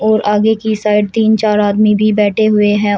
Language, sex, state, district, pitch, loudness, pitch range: Hindi, female, Uttar Pradesh, Shamli, 210 Hz, -12 LUFS, 210-215 Hz